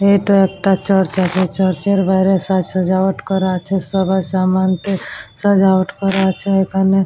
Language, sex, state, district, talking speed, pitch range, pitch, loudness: Bengali, female, West Bengal, Dakshin Dinajpur, 120 wpm, 185-195 Hz, 190 Hz, -15 LUFS